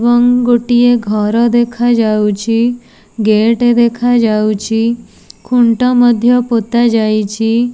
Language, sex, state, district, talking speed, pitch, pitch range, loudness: Odia, female, Odisha, Nuapada, 80 wpm, 235 Hz, 225-240 Hz, -12 LUFS